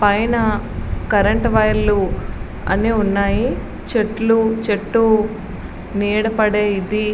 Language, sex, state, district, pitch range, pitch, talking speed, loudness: Telugu, female, Andhra Pradesh, Srikakulam, 205-225 Hz, 215 Hz, 100 wpm, -18 LUFS